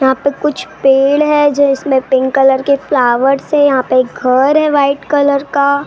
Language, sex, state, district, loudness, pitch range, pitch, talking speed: Hindi, female, Maharashtra, Gondia, -12 LUFS, 265-285 Hz, 275 Hz, 195 wpm